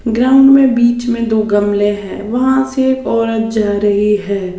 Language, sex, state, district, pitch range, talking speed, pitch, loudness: Hindi, female, Odisha, Sambalpur, 205-250 Hz, 185 wpm, 225 Hz, -13 LUFS